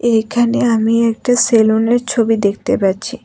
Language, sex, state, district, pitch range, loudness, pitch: Bengali, female, Tripura, West Tripura, 220-240 Hz, -14 LUFS, 230 Hz